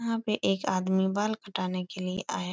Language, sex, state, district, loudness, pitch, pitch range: Hindi, female, Uttar Pradesh, Etah, -30 LUFS, 190 Hz, 185-215 Hz